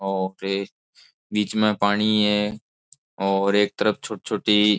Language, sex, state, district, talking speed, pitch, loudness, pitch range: Marwari, male, Rajasthan, Nagaur, 150 wpm, 105 Hz, -22 LUFS, 95-105 Hz